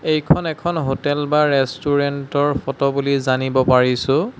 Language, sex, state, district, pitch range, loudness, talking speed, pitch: Assamese, male, Assam, Sonitpur, 135-150 Hz, -18 LUFS, 135 wpm, 140 Hz